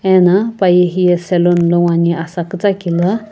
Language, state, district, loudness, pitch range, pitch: Sumi, Nagaland, Kohima, -13 LUFS, 175-190 Hz, 180 Hz